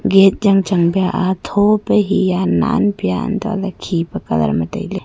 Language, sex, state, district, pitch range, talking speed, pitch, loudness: Wancho, female, Arunachal Pradesh, Longding, 185-205 Hz, 155 wpm, 195 Hz, -16 LUFS